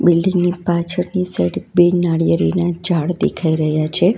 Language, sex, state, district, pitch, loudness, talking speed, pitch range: Gujarati, female, Gujarat, Valsad, 175 Hz, -17 LUFS, 155 wpm, 160-180 Hz